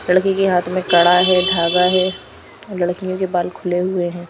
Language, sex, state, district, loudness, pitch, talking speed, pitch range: Hindi, female, Maharashtra, Washim, -16 LUFS, 180 Hz, 195 wpm, 175-185 Hz